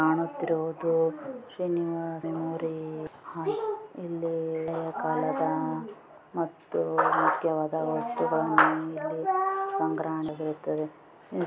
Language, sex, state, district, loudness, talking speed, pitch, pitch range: Kannada, female, Karnataka, Dakshina Kannada, -29 LUFS, 70 wpm, 165 Hz, 160-170 Hz